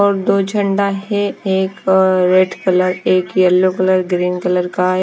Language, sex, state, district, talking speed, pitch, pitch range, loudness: Hindi, female, Himachal Pradesh, Shimla, 155 wpm, 185 Hz, 185-195 Hz, -15 LUFS